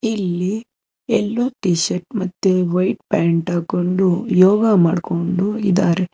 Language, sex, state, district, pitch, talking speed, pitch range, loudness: Kannada, male, Karnataka, Bangalore, 185 Hz, 105 wpm, 175-205 Hz, -18 LUFS